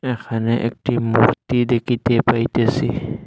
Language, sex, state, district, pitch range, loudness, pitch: Bengali, male, Assam, Hailakandi, 115-125 Hz, -19 LUFS, 120 Hz